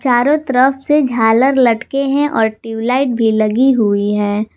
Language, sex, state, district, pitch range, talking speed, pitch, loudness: Hindi, female, Jharkhand, Garhwa, 225-270 Hz, 160 wpm, 245 Hz, -14 LUFS